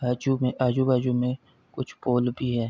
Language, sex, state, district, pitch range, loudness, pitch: Hindi, male, Uttar Pradesh, Deoria, 125-130 Hz, -25 LUFS, 125 Hz